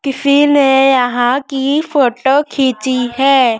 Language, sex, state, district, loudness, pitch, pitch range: Hindi, male, Madhya Pradesh, Dhar, -12 LUFS, 270 Hz, 255-280 Hz